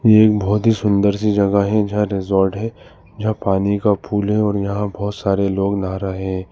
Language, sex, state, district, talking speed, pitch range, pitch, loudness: Hindi, male, Uttar Pradesh, Lalitpur, 200 wpm, 95-105 Hz, 100 Hz, -18 LUFS